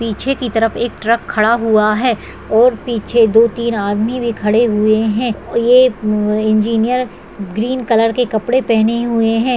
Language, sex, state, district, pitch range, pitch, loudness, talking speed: Hindi, female, Bihar, Jahanabad, 215-240 Hz, 230 Hz, -14 LUFS, 170 wpm